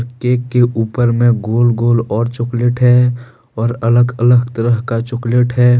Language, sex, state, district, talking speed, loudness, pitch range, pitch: Hindi, male, Jharkhand, Deoghar, 155 wpm, -14 LUFS, 115-125 Hz, 120 Hz